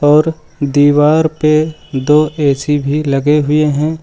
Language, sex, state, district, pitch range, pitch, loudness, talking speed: Hindi, male, Uttar Pradesh, Lucknow, 145-155 Hz, 150 Hz, -13 LUFS, 135 wpm